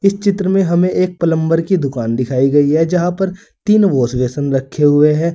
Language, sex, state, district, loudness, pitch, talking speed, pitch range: Hindi, male, Uttar Pradesh, Saharanpur, -15 LUFS, 165 Hz, 215 wpm, 140-190 Hz